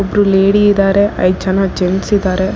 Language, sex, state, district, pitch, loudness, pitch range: Kannada, female, Karnataka, Bangalore, 195 Hz, -13 LUFS, 190-200 Hz